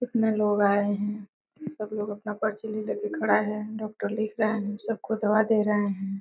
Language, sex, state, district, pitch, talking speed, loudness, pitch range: Hindi, female, Bihar, Gopalganj, 210 Hz, 220 wpm, -27 LUFS, 205-220 Hz